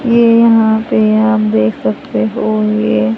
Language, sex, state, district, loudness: Hindi, female, Haryana, Jhajjar, -12 LUFS